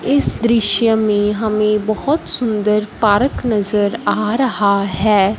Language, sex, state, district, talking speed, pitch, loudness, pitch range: Hindi, female, Punjab, Fazilka, 120 wpm, 215 Hz, -15 LUFS, 210-230 Hz